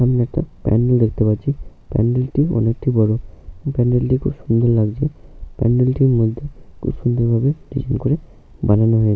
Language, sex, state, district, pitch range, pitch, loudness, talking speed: Bengali, male, West Bengal, Jhargram, 115-135 Hz, 120 Hz, -18 LUFS, 155 wpm